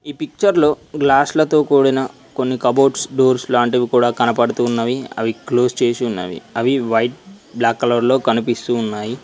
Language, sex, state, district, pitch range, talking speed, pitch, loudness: Telugu, male, Telangana, Mahabubabad, 120-135 Hz, 135 wpm, 125 Hz, -17 LUFS